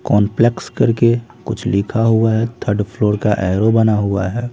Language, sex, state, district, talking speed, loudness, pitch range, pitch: Hindi, male, Bihar, Patna, 170 wpm, -16 LUFS, 105-115 Hz, 110 Hz